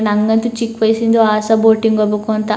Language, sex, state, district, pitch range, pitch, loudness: Kannada, female, Karnataka, Chamarajanagar, 215-225 Hz, 220 Hz, -14 LUFS